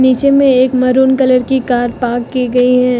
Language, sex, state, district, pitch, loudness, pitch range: Hindi, female, Uttar Pradesh, Lucknow, 255 Hz, -12 LUFS, 250-265 Hz